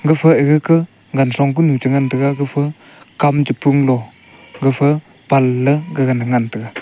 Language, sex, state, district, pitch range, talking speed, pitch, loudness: Wancho, male, Arunachal Pradesh, Longding, 130-145 Hz, 195 wpm, 140 Hz, -15 LUFS